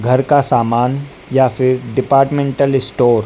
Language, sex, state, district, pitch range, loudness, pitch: Hindi, female, Madhya Pradesh, Dhar, 125-140 Hz, -14 LUFS, 130 Hz